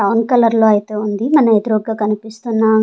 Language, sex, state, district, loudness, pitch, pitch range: Telugu, female, Andhra Pradesh, Sri Satya Sai, -15 LUFS, 220 Hz, 210-230 Hz